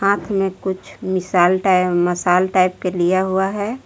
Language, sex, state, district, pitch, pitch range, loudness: Hindi, female, Jharkhand, Palamu, 185 Hz, 180-195 Hz, -18 LUFS